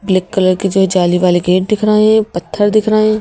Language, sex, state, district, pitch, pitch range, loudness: Hindi, female, Madhya Pradesh, Bhopal, 195 Hz, 185-215 Hz, -12 LUFS